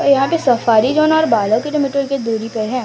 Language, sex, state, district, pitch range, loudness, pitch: Hindi, female, Odisha, Sambalpur, 225-280 Hz, -15 LUFS, 260 Hz